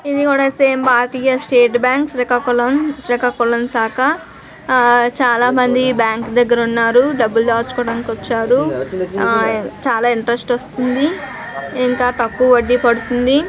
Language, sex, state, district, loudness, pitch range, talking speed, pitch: Telugu, female, Andhra Pradesh, Srikakulam, -15 LUFS, 235-255 Hz, 105 wpm, 245 Hz